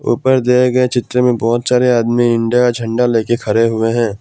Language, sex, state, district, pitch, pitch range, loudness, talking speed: Hindi, male, Assam, Kamrup Metropolitan, 120 Hz, 115-125 Hz, -14 LUFS, 215 wpm